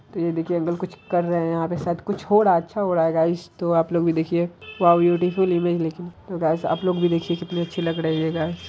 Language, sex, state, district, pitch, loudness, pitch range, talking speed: Angika, female, Bihar, Araria, 170 Hz, -22 LUFS, 165-175 Hz, 290 wpm